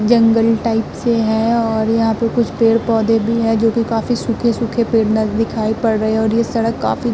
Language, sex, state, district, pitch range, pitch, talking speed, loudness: Hindi, female, Uttar Pradesh, Muzaffarnagar, 225-230 Hz, 225 Hz, 210 wpm, -16 LUFS